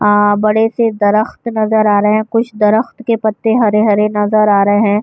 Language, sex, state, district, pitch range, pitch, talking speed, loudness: Urdu, female, Uttar Pradesh, Budaun, 210-225 Hz, 215 Hz, 205 wpm, -13 LUFS